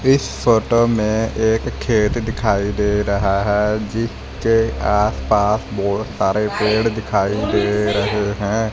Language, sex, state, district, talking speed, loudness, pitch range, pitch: Hindi, male, Punjab, Fazilka, 125 wpm, -18 LUFS, 105-110 Hz, 105 Hz